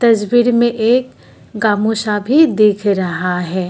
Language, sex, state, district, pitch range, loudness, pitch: Hindi, female, Assam, Kamrup Metropolitan, 200-240 Hz, -14 LUFS, 215 Hz